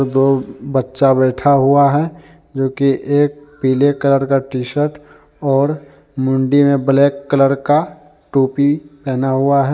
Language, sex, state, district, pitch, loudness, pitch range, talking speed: Hindi, male, Jharkhand, Deoghar, 140 Hz, -15 LUFS, 135-145 Hz, 140 wpm